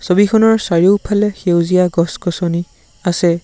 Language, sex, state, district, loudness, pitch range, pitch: Assamese, male, Assam, Sonitpur, -14 LUFS, 170-205 Hz, 180 Hz